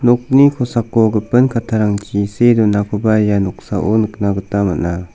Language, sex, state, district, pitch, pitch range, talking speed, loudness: Garo, male, Meghalaya, South Garo Hills, 110 Hz, 100-120 Hz, 130 wpm, -15 LUFS